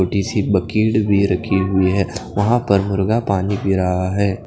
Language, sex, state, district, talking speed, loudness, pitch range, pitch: Hindi, male, Odisha, Khordha, 175 wpm, -18 LUFS, 95-105 Hz, 100 Hz